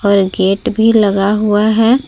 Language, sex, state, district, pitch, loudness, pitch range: Hindi, female, Jharkhand, Palamu, 210 Hz, -12 LUFS, 200-225 Hz